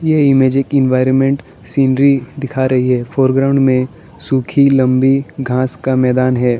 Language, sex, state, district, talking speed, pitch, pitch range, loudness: Hindi, male, Arunachal Pradesh, Lower Dibang Valley, 135 wpm, 130 Hz, 130-135 Hz, -14 LUFS